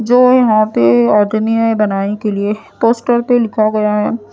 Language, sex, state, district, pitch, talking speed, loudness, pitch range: Hindi, female, Odisha, Nuapada, 215 Hz, 150 wpm, -13 LUFS, 210-230 Hz